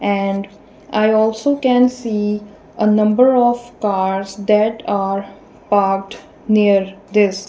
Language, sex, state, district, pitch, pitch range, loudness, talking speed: English, female, Punjab, Kapurthala, 210 Hz, 200-225 Hz, -16 LUFS, 110 wpm